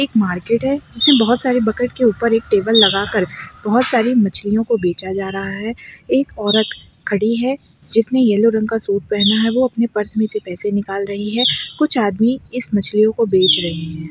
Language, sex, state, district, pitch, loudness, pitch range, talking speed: Hindi, female, Chhattisgarh, Bilaspur, 220 Hz, -17 LUFS, 205-235 Hz, 210 wpm